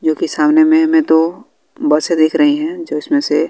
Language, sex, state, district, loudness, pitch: Hindi, female, Bihar, West Champaran, -14 LUFS, 165 Hz